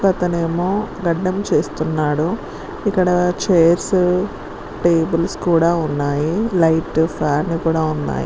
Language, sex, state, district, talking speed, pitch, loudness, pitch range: Telugu, female, Telangana, Karimnagar, 100 wpm, 170 Hz, -18 LUFS, 160-180 Hz